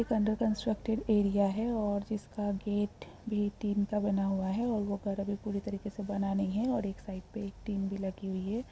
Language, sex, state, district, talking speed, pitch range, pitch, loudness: Hindi, female, Bihar, Jamui, 235 wpm, 200-215 Hz, 205 Hz, -33 LUFS